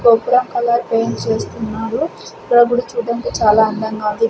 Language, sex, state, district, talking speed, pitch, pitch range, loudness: Telugu, female, Andhra Pradesh, Sri Satya Sai, 140 wpm, 235 Hz, 220-245 Hz, -17 LUFS